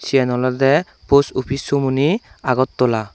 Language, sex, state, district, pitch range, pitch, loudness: Chakma, male, Tripura, Dhalai, 130-140 Hz, 135 Hz, -18 LUFS